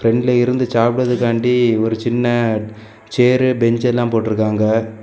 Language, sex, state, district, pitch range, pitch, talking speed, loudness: Tamil, male, Tamil Nadu, Kanyakumari, 110-125 Hz, 115 Hz, 120 wpm, -16 LUFS